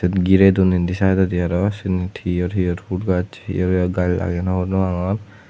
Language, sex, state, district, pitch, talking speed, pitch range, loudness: Chakma, male, Tripura, West Tripura, 90 Hz, 220 wpm, 90-95 Hz, -19 LUFS